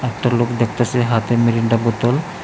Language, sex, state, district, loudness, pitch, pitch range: Bengali, male, Tripura, West Tripura, -17 LUFS, 120 Hz, 115-120 Hz